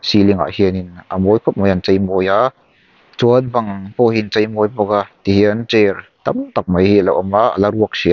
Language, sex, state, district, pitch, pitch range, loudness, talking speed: Mizo, male, Mizoram, Aizawl, 100 Hz, 95-110 Hz, -15 LUFS, 215 wpm